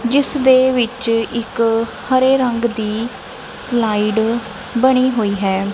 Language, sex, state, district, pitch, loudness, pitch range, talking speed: Punjabi, female, Punjab, Kapurthala, 235 Hz, -16 LUFS, 220-255 Hz, 115 wpm